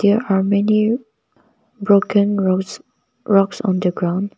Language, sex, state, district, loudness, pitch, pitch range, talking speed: English, female, Nagaland, Kohima, -17 LUFS, 205 Hz, 195-215 Hz, 125 wpm